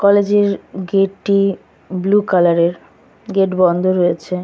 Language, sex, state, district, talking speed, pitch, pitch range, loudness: Bengali, female, West Bengal, Kolkata, 120 wpm, 190 Hz, 180-200 Hz, -16 LUFS